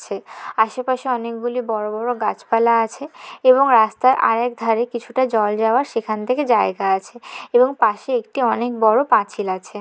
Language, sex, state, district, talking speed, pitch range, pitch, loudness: Bengali, female, West Bengal, Jalpaiguri, 145 wpm, 220-250 Hz, 230 Hz, -19 LUFS